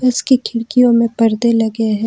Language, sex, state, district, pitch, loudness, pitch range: Hindi, female, Jharkhand, Ranchi, 230 Hz, -14 LUFS, 225-245 Hz